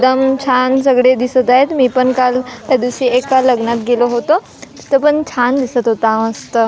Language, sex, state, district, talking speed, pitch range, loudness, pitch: Marathi, female, Maharashtra, Gondia, 180 wpm, 245-265 Hz, -13 LUFS, 255 Hz